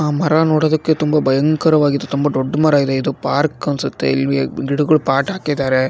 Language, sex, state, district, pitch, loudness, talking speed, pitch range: Kannada, male, Karnataka, Raichur, 145 Hz, -16 LUFS, 175 wpm, 135-155 Hz